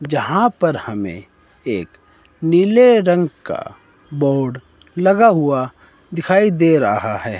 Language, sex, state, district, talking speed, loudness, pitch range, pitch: Hindi, male, Himachal Pradesh, Shimla, 115 wpm, -16 LUFS, 115-180 Hz, 150 Hz